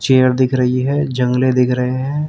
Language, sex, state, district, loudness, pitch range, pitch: Hindi, male, Uttar Pradesh, Jyotiba Phule Nagar, -15 LUFS, 125-130 Hz, 130 Hz